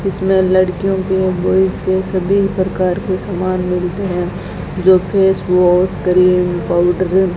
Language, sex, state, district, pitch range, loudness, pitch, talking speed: Hindi, female, Rajasthan, Bikaner, 180-190 Hz, -15 LUFS, 185 Hz, 140 wpm